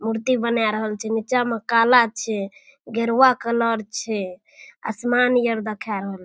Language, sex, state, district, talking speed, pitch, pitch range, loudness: Maithili, female, Bihar, Darbhanga, 145 wpm, 225 Hz, 215-240 Hz, -21 LUFS